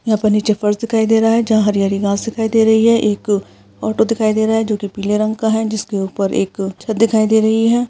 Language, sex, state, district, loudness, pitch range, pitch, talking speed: Hindi, female, Uttarakhand, Uttarkashi, -16 LUFS, 200-225 Hz, 215 Hz, 265 wpm